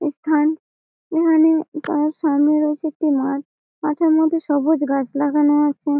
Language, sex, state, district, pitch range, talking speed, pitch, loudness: Bengali, female, West Bengal, Malda, 290-315 Hz, 140 wpm, 300 Hz, -19 LUFS